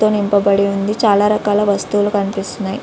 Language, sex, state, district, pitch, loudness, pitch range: Telugu, female, Andhra Pradesh, Visakhapatnam, 205 Hz, -15 LUFS, 200-210 Hz